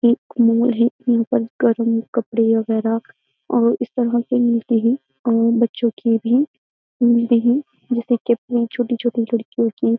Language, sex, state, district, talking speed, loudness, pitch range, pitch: Hindi, female, Uttar Pradesh, Jyotiba Phule Nagar, 155 wpm, -19 LUFS, 230-240 Hz, 235 Hz